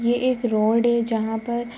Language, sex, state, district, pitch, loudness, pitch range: Hindi, female, Bihar, Jahanabad, 235 Hz, -21 LUFS, 225-240 Hz